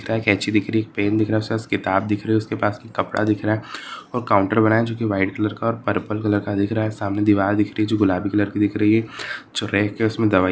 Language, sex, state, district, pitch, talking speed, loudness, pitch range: Marwari, male, Rajasthan, Nagaur, 105 Hz, 320 wpm, -21 LUFS, 100-110 Hz